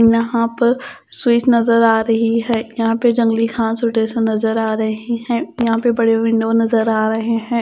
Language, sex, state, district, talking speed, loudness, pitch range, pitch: Hindi, female, Chandigarh, Chandigarh, 180 wpm, -16 LUFS, 225-235 Hz, 230 Hz